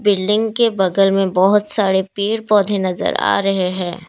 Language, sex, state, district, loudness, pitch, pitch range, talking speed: Hindi, female, Assam, Kamrup Metropolitan, -16 LUFS, 195 Hz, 190-210 Hz, 175 wpm